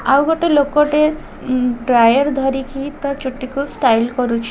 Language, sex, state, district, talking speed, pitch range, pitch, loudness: Odia, female, Odisha, Khordha, 135 wpm, 250-285 Hz, 270 Hz, -16 LUFS